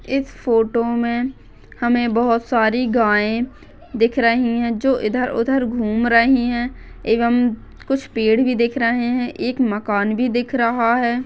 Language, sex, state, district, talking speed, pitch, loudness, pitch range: Hindi, female, Maharashtra, Nagpur, 155 wpm, 235 Hz, -18 LUFS, 230-250 Hz